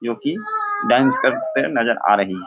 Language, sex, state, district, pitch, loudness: Hindi, male, Bihar, Sitamarhi, 125 Hz, -18 LUFS